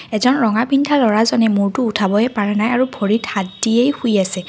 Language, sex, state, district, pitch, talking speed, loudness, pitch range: Assamese, female, Assam, Kamrup Metropolitan, 220 Hz, 185 wpm, -16 LUFS, 205-245 Hz